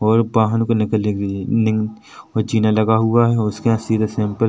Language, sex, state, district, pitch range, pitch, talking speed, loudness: Hindi, male, Chhattisgarh, Rajnandgaon, 110-115 Hz, 110 Hz, 225 wpm, -18 LUFS